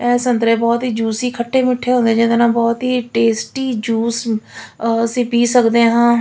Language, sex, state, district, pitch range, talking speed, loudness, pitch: Punjabi, female, Punjab, Fazilka, 230-245 Hz, 175 wpm, -16 LUFS, 235 Hz